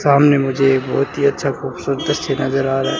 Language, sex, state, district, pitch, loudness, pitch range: Hindi, male, Rajasthan, Bikaner, 135 Hz, -17 LUFS, 135-140 Hz